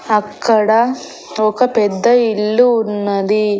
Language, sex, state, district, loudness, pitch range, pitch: Telugu, female, Andhra Pradesh, Annamaya, -14 LUFS, 210-235 Hz, 215 Hz